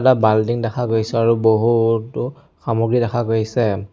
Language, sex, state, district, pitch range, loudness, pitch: Assamese, male, Assam, Sonitpur, 110-120 Hz, -18 LUFS, 115 Hz